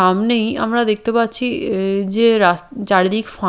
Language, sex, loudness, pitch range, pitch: Bengali, female, -17 LUFS, 195-230 Hz, 215 Hz